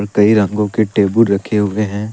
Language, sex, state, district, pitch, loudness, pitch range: Hindi, male, Jharkhand, Deoghar, 105 Hz, -14 LUFS, 100-110 Hz